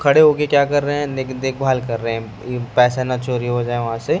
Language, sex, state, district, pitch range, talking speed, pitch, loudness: Hindi, male, Chhattisgarh, Raipur, 120-140 Hz, 240 wpm, 130 Hz, -19 LUFS